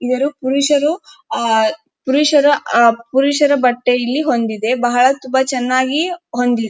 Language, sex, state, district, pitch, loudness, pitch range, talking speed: Kannada, female, Karnataka, Dharwad, 260 Hz, -15 LUFS, 245-290 Hz, 115 wpm